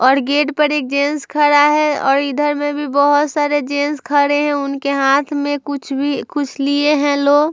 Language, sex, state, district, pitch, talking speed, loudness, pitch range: Hindi, female, Uttar Pradesh, Muzaffarnagar, 290 Hz, 205 wpm, -16 LUFS, 280-295 Hz